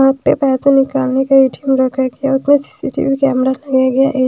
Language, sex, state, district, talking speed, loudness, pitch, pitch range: Hindi, female, Bihar, West Champaran, 225 wpm, -14 LUFS, 270 Hz, 260-275 Hz